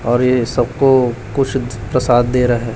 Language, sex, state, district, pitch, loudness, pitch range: Hindi, male, Chhattisgarh, Raipur, 125 Hz, -15 LUFS, 120-130 Hz